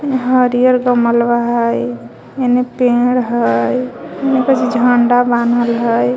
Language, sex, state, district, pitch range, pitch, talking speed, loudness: Magahi, female, Jharkhand, Palamu, 235-250 Hz, 245 Hz, 115 wpm, -14 LUFS